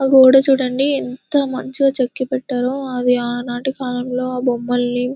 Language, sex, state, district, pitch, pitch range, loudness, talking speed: Telugu, female, Telangana, Nalgonda, 255 Hz, 250-270 Hz, -18 LUFS, 130 wpm